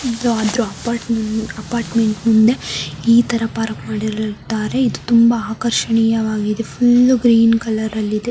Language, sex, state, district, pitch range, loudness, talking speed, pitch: Kannada, male, Karnataka, Mysore, 220-235 Hz, -17 LUFS, 125 wpm, 225 Hz